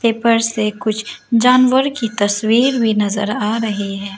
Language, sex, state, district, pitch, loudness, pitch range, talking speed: Hindi, female, Arunachal Pradesh, Lower Dibang Valley, 220 Hz, -16 LUFS, 205-235 Hz, 160 wpm